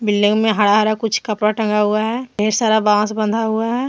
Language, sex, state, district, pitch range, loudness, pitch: Hindi, female, Jharkhand, Deoghar, 210-225 Hz, -17 LUFS, 215 Hz